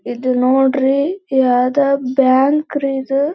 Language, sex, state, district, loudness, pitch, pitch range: Kannada, female, Karnataka, Belgaum, -15 LUFS, 270 Hz, 255-280 Hz